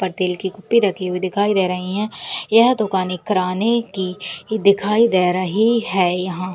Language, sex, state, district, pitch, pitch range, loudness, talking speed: Hindi, female, Uttarakhand, Uttarkashi, 190 Hz, 185-215 Hz, -18 LUFS, 185 wpm